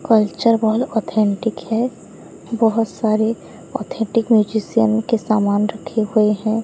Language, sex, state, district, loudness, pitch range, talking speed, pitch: Hindi, female, Odisha, Sambalpur, -18 LUFS, 215-230 Hz, 115 wpm, 220 Hz